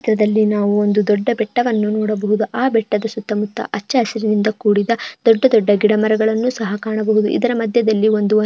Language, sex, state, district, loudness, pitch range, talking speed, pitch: Kannada, female, Karnataka, Mysore, -17 LUFS, 210-225 Hz, 150 wpm, 215 Hz